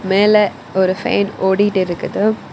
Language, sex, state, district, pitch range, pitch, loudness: Tamil, female, Tamil Nadu, Kanyakumari, 190-210 Hz, 195 Hz, -16 LUFS